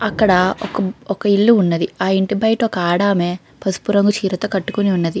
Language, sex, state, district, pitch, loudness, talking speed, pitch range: Telugu, female, Andhra Pradesh, Krishna, 200 Hz, -17 LUFS, 160 wpm, 185-210 Hz